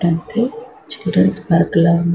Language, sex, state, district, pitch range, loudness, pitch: Telugu, female, Andhra Pradesh, Anantapur, 170-200 Hz, -16 LUFS, 170 Hz